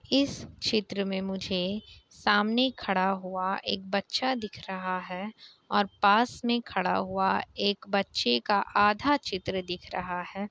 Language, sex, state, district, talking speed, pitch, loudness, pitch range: Hindi, female, Bihar, Kishanganj, 135 wpm, 200 Hz, -28 LUFS, 190-215 Hz